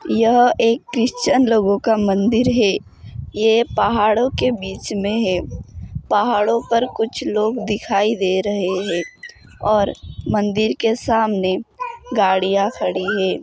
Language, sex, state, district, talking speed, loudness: Hindi, male, Maharashtra, Dhule, 120 wpm, -18 LUFS